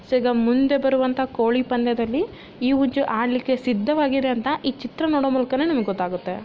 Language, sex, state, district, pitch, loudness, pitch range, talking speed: Kannada, female, Karnataka, Bellary, 255 Hz, -22 LUFS, 240-275 Hz, 160 wpm